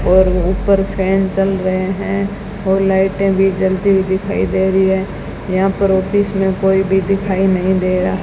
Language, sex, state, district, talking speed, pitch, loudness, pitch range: Hindi, female, Rajasthan, Bikaner, 180 wpm, 190 Hz, -15 LUFS, 190-195 Hz